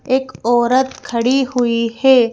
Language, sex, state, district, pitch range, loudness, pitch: Hindi, female, Madhya Pradesh, Bhopal, 235-260 Hz, -16 LUFS, 250 Hz